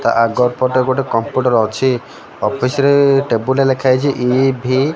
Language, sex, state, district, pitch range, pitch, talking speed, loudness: Odia, male, Odisha, Malkangiri, 120-135 Hz, 130 Hz, 155 wpm, -15 LUFS